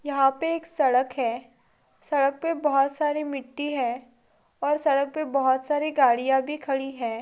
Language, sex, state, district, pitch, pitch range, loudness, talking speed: Hindi, female, Goa, North and South Goa, 275 Hz, 260-295 Hz, -25 LUFS, 165 wpm